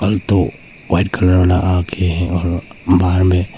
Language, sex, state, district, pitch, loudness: Hindi, male, Arunachal Pradesh, Papum Pare, 90 Hz, -16 LUFS